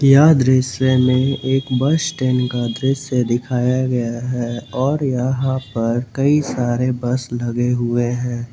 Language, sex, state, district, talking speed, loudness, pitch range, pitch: Hindi, male, Jharkhand, Garhwa, 140 wpm, -18 LUFS, 120-135 Hz, 125 Hz